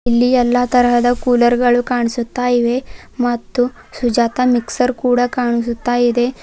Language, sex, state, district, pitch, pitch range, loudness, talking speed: Kannada, female, Karnataka, Bidar, 245 Hz, 240-245 Hz, -16 LUFS, 120 wpm